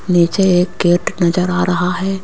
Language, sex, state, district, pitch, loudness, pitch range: Hindi, female, Rajasthan, Jaipur, 180 Hz, -15 LUFS, 175-185 Hz